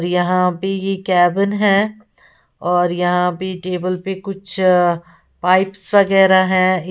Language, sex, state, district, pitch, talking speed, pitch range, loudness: Hindi, female, Uttar Pradesh, Lalitpur, 185 Hz, 115 wpm, 180-195 Hz, -16 LUFS